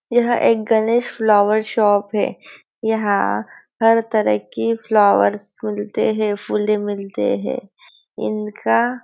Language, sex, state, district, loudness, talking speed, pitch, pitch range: Hindi, female, Maharashtra, Nagpur, -18 LUFS, 115 wpm, 215 Hz, 200-225 Hz